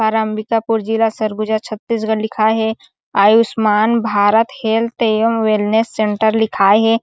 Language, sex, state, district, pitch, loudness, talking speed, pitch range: Chhattisgarhi, female, Chhattisgarh, Sarguja, 220 Hz, -15 LUFS, 120 wpm, 215-225 Hz